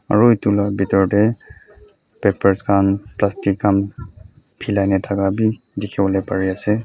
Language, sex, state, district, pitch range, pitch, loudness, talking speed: Nagamese, male, Mizoram, Aizawl, 100-105 Hz, 100 Hz, -18 LUFS, 140 wpm